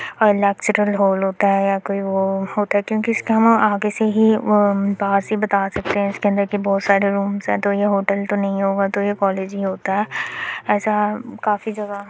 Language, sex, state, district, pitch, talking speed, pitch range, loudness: Hindi, female, Uttar Pradesh, Jyotiba Phule Nagar, 200 Hz, 230 wpm, 195-210 Hz, -19 LUFS